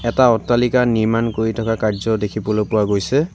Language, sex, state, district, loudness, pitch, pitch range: Assamese, male, Assam, Sonitpur, -18 LUFS, 115 Hz, 105-120 Hz